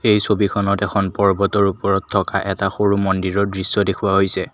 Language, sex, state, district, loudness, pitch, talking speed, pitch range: Assamese, male, Assam, Kamrup Metropolitan, -18 LUFS, 100 Hz, 160 wpm, 95-100 Hz